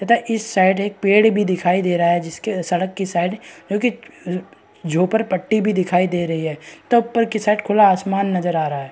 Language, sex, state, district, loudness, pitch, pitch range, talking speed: Hindi, female, Bihar, East Champaran, -19 LUFS, 190 Hz, 175-215 Hz, 215 wpm